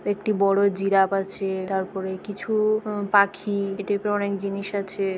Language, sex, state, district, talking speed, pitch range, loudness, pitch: Bengali, female, West Bengal, Jhargram, 150 wpm, 195-205 Hz, -24 LUFS, 200 Hz